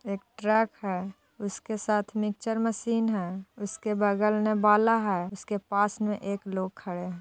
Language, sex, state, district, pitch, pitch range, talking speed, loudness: Hindi, female, Bihar, Jahanabad, 210 Hz, 195-220 Hz, 175 wpm, -28 LUFS